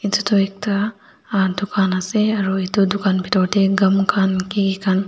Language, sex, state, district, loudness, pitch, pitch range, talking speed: Nagamese, female, Nagaland, Dimapur, -18 LUFS, 195 Hz, 190-205 Hz, 175 wpm